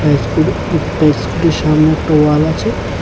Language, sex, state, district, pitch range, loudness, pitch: Bengali, male, Tripura, West Tripura, 115-155 Hz, -13 LUFS, 150 Hz